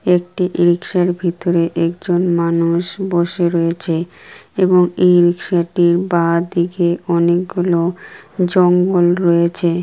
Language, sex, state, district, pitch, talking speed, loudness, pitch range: Bengali, female, West Bengal, Kolkata, 175 Hz, 105 wpm, -15 LUFS, 170-180 Hz